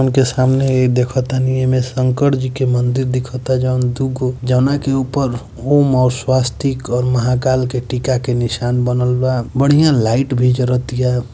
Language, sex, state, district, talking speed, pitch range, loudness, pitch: Bhojpuri, male, Uttar Pradesh, Varanasi, 155 wpm, 125-130 Hz, -16 LUFS, 130 Hz